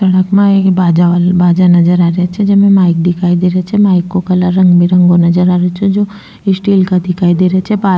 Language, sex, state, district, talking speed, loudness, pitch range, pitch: Rajasthani, female, Rajasthan, Nagaur, 240 wpm, -10 LUFS, 175-195 Hz, 180 Hz